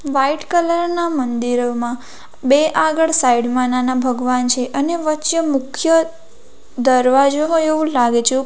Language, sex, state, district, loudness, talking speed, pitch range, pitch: Gujarati, female, Gujarat, Valsad, -16 LUFS, 150 wpm, 250-315 Hz, 275 Hz